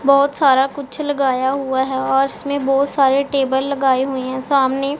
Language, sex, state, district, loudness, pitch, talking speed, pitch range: Hindi, female, Punjab, Pathankot, -17 LUFS, 275 Hz, 180 wpm, 265-280 Hz